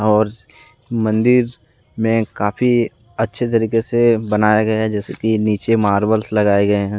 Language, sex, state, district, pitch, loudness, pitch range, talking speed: Hindi, male, Jharkhand, Deoghar, 110 Hz, -17 LUFS, 105-115 Hz, 145 wpm